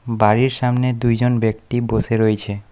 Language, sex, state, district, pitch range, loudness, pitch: Bengali, male, West Bengal, Alipurduar, 110-125 Hz, -18 LUFS, 115 Hz